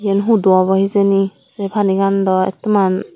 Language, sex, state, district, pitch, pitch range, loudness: Chakma, female, Tripura, Dhalai, 195 Hz, 190-200 Hz, -15 LUFS